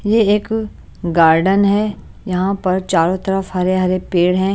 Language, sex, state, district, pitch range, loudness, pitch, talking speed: Hindi, female, Chandigarh, Chandigarh, 180-200 Hz, -16 LUFS, 190 Hz, 145 wpm